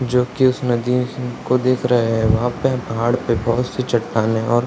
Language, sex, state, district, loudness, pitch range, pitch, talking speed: Hindi, male, Bihar, Purnia, -19 LUFS, 115-125 Hz, 125 Hz, 220 wpm